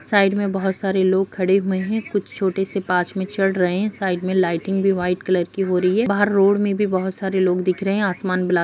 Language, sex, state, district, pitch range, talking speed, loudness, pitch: Hindi, female, Bihar, Jahanabad, 185-200 Hz, 270 wpm, -20 LUFS, 190 Hz